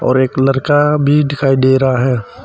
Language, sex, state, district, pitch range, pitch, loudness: Hindi, male, Arunachal Pradesh, Papum Pare, 130-145 Hz, 135 Hz, -13 LUFS